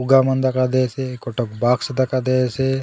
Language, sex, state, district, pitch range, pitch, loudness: Halbi, male, Chhattisgarh, Bastar, 125-130 Hz, 130 Hz, -19 LUFS